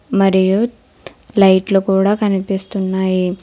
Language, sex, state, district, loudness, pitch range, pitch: Telugu, female, Telangana, Hyderabad, -15 LUFS, 190-200 Hz, 195 Hz